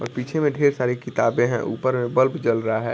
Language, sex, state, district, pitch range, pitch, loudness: Hindi, male, Bihar, Sitamarhi, 115-130 Hz, 125 Hz, -22 LUFS